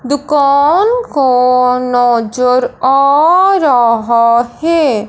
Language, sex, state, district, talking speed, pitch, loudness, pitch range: Hindi, male, Punjab, Fazilka, 70 wpm, 255 Hz, -11 LUFS, 245-295 Hz